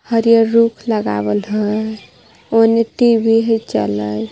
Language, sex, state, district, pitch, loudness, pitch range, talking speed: Magahi, female, Jharkhand, Palamu, 225 Hz, -15 LUFS, 205-230 Hz, 110 wpm